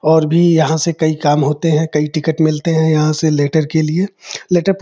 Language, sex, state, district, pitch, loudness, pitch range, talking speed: Hindi, male, Uttar Pradesh, Gorakhpur, 160 Hz, -14 LUFS, 155-165 Hz, 235 wpm